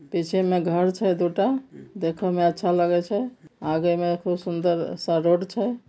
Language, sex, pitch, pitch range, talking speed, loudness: Maithili, male, 175 Hz, 175-195 Hz, 165 wpm, -24 LUFS